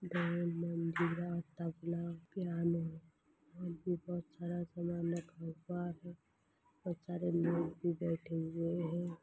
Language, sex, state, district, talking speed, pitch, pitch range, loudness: Hindi, female, Chhattisgarh, Rajnandgaon, 125 wpm, 170 Hz, 165-175 Hz, -40 LUFS